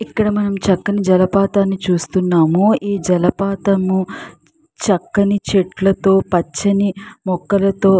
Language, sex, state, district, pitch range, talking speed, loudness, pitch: Telugu, female, Andhra Pradesh, Chittoor, 185-200 Hz, 90 wpm, -16 LUFS, 195 Hz